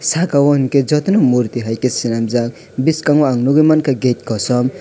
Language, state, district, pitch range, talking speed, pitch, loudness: Kokborok, Tripura, West Tripura, 120-150 Hz, 160 wpm, 135 Hz, -15 LUFS